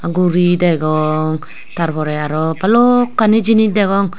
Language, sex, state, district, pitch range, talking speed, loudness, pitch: Chakma, female, Tripura, Unakoti, 155-215 Hz, 115 wpm, -14 LUFS, 175 Hz